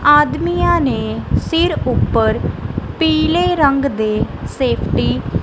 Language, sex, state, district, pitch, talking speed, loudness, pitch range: Punjabi, female, Punjab, Kapurthala, 295 Hz, 100 wpm, -16 LUFS, 280-325 Hz